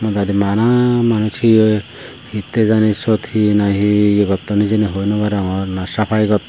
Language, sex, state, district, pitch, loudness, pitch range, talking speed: Chakma, male, Tripura, Unakoti, 105 Hz, -15 LUFS, 100-110 Hz, 165 wpm